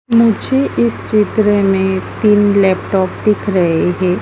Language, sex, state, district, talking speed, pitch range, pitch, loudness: Hindi, female, Madhya Pradesh, Dhar, 130 wpm, 190-215 Hz, 205 Hz, -14 LUFS